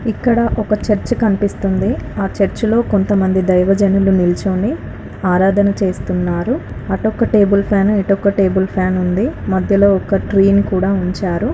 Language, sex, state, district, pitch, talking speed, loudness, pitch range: Telugu, female, Telangana, Karimnagar, 195 Hz, 130 wpm, -15 LUFS, 190-205 Hz